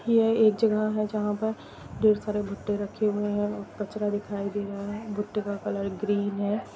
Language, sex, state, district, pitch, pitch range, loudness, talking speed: Hindi, female, Jharkhand, Jamtara, 210 Hz, 205-215 Hz, -28 LUFS, 195 wpm